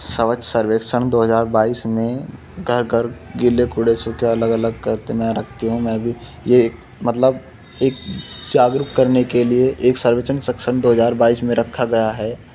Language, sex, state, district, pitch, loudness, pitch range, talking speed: Hindi, male, Uttar Pradesh, Muzaffarnagar, 120 Hz, -18 LUFS, 115-125 Hz, 175 wpm